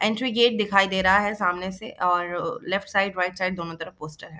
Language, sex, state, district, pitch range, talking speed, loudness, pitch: Hindi, female, Bihar, Jahanabad, 175-205 Hz, 230 wpm, -23 LUFS, 190 Hz